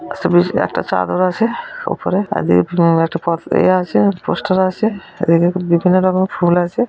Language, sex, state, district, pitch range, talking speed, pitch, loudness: Bengali, female, West Bengal, Jalpaiguri, 170-205 Hz, 155 wpm, 185 Hz, -16 LUFS